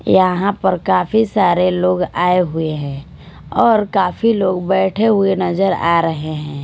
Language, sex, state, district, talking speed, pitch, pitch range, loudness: Hindi, female, Punjab, Kapurthala, 155 wpm, 185 Hz, 170-195 Hz, -16 LUFS